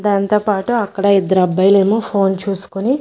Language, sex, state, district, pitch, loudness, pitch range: Telugu, female, Andhra Pradesh, Manyam, 200 Hz, -15 LUFS, 195-210 Hz